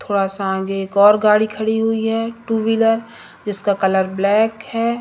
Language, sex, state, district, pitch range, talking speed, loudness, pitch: Hindi, female, Madhya Pradesh, Umaria, 200-225 Hz, 180 wpm, -17 LUFS, 215 Hz